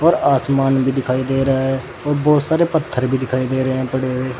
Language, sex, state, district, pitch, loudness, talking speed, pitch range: Hindi, male, Uttar Pradesh, Saharanpur, 135 Hz, -18 LUFS, 245 wpm, 130-140 Hz